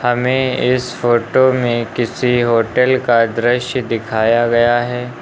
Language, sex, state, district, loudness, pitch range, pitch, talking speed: Hindi, male, Uttar Pradesh, Lucknow, -15 LUFS, 115-125 Hz, 120 Hz, 125 wpm